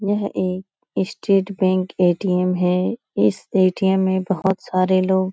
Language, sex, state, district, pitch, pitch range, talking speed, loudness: Hindi, female, Bihar, Supaul, 185 Hz, 185-190 Hz, 160 wpm, -20 LUFS